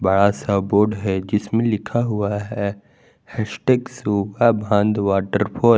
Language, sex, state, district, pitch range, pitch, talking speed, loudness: Hindi, male, Jharkhand, Garhwa, 100-115 Hz, 105 Hz, 135 wpm, -20 LUFS